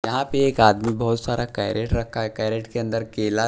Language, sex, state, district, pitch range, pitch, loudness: Hindi, male, Maharashtra, Washim, 110-120 Hz, 115 Hz, -22 LUFS